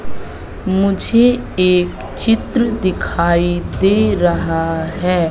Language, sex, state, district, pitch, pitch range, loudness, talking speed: Hindi, female, Madhya Pradesh, Katni, 180 Hz, 165-200 Hz, -16 LUFS, 80 wpm